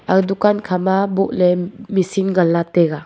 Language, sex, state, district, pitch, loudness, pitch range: Wancho, female, Arunachal Pradesh, Longding, 190 Hz, -17 LUFS, 180-195 Hz